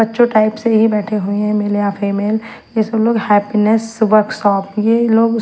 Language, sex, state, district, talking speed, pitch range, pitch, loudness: Hindi, female, Chandigarh, Chandigarh, 190 wpm, 205-225 Hz, 215 Hz, -15 LUFS